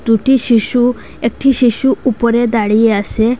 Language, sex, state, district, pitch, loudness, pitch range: Bengali, female, Assam, Hailakandi, 235 Hz, -13 LUFS, 225-255 Hz